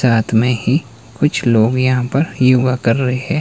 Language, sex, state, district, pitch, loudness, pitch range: Hindi, male, Himachal Pradesh, Shimla, 125 Hz, -15 LUFS, 115-130 Hz